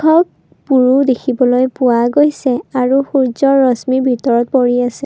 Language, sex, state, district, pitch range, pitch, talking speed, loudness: Assamese, female, Assam, Kamrup Metropolitan, 250-275 Hz, 260 Hz, 105 wpm, -13 LUFS